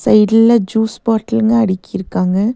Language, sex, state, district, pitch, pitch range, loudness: Tamil, female, Tamil Nadu, Nilgiris, 220 Hz, 200-225 Hz, -14 LUFS